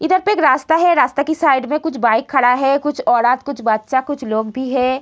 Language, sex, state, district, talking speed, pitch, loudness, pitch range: Hindi, female, Uttar Pradesh, Deoria, 250 wpm, 270 Hz, -16 LUFS, 245-300 Hz